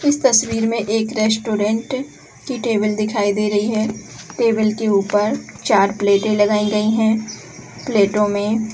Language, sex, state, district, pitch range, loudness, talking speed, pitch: Hindi, female, Chhattisgarh, Bilaspur, 210-225 Hz, -18 LUFS, 145 wpm, 215 Hz